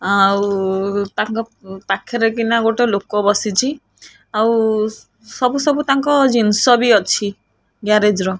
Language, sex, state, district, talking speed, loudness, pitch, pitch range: Odia, female, Odisha, Khordha, 115 wpm, -16 LUFS, 215 Hz, 200-235 Hz